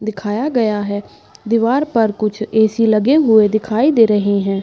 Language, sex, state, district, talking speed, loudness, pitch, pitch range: Hindi, female, Uttar Pradesh, Budaun, 170 wpm, -15 LUFS, 220 Hz, 210-230 Hz